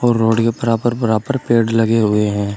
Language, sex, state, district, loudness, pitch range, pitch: Hindi, male, Uttar Pradesh, Shamli, -16 LUFS, 110-120 Hz, 115 Hz